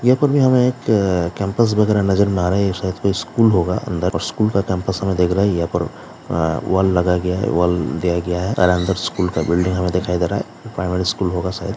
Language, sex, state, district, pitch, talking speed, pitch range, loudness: Hindi, male, Bihar, Samastipur, 95 Hz, 255 wpm, 90-100 Hz, -18 LUFS